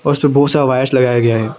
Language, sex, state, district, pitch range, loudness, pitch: Hindi, male, Arunachal Pradesh, Lower Dibang Valley, 120-145 Hz, -13 LUFS, 130 Hz